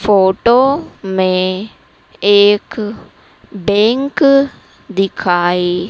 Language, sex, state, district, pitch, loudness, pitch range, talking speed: Hindi, female, Madhya Pradesh, Dhar, 205 Hz, -14 LUFS, 185-230 Hz, 50 wpm